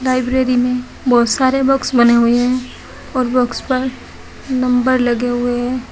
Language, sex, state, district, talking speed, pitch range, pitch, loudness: Hindi, female, Uttar Pradesh, Shamli, 150 wpm, 245-260 Hz, 250 Hz, -15 LUFS